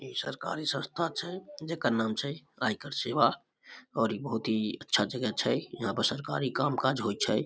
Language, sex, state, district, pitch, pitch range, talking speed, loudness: Maithili, male, Bihar, Samastipur, 140 Hz, 115-165 Hz, 185 wpm, -31 LUFS